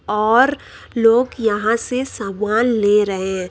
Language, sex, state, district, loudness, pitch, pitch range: Hindi, male, Uttar Pradesh, Lucknow, -17 LUFS, 220 Hz, 205-240 Hz